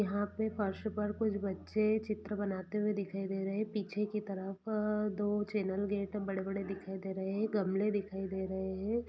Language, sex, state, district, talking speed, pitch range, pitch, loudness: Hindi, female, Bihar, East Champaran, 190 wpm, 195-210 Hz, 205 Hz, -36 LUFS